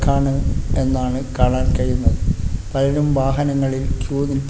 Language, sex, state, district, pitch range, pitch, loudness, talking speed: Malayalam, male, Kerala, Kasaragod, 105-140 Hz, 130 Hz, -20 LUFS, 105 wpm